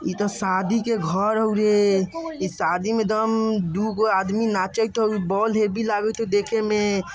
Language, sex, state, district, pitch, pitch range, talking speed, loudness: Bajjika, male, Bihar, Vaishali, 215 Hz, 200-220 Hz, 175 wpm, -22 LUFS